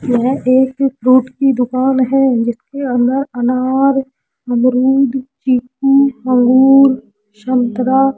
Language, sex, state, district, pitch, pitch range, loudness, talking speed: Hindi, female, Rajasthan, Jaipur, 260 Hz, 250-270 Hz, -13 LUFS, 105 wpm